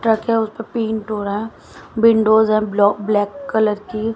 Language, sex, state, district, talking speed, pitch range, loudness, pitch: Hindi, female, Haryana, Jhajjar, 175 wpm, 210-225 Hz, -18 LUFS, 220 Hz